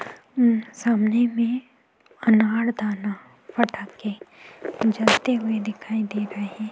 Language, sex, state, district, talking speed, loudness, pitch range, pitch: Hindi, female, Goa, North and South Goa, 100 wpm, -23 LUFS, 215-235 Hz, 220 Hz